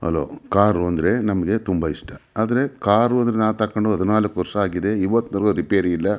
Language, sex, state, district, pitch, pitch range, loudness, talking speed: Kannada, male, Karnataka, Mysore, 105 Hz, 95-110 Hz, -20 LUFS, 145 wpm